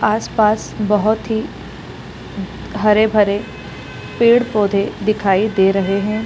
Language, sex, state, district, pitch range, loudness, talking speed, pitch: Hindi, female, Bihar, East Champaran, 200-220 Hz, -16 LUFS, 125 wpm, 210 Hz